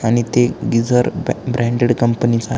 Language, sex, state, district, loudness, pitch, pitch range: Marathi, male, Maharashtra, Aurangabad, -17 LUFS, 120 Hz, 115-125 Hz